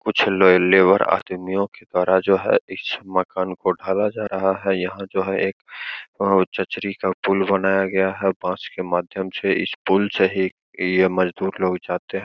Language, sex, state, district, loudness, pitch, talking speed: Hindi, male, Bihar, Begusarai, -20 LUFS, 95 Hz, 185 wpm